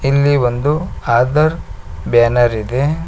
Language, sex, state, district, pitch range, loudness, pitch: Kannada, male, Karnataka, Koppal, 115-145 Hz, -15 LUFS, 125 Hz